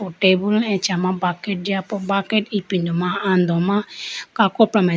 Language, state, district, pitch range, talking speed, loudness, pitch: Idu Mishmi, Arunachal Pradesh, Lower Dibang Valley, 180-205 Hz, 145 wpm, -20 LUFS, 195 Hz